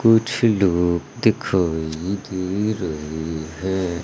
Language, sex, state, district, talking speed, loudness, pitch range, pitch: Hindi, male, Madhya Pradesh, Umaria, 90 wpm, -21 LUFS, 80-100 Hz, 90 Hz